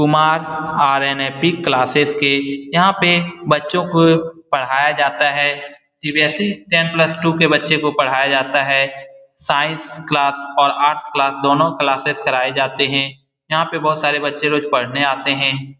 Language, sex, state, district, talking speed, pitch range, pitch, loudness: Hindi, male, Bihar, Saran, 155 wpm, 140-160 Hz, 145 Hz, -16 LUFS